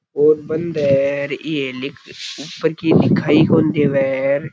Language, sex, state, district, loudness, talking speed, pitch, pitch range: Rajasthani, male, Rajasthan, Churu, -17 LUFS, 135 wpm, 150 Hz, 140-160 Hz